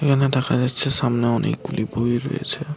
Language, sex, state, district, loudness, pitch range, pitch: Bengali, male, West Bengal, Paschim Medinipur, -20 LUFS, 120-140 Hz, 130 Hz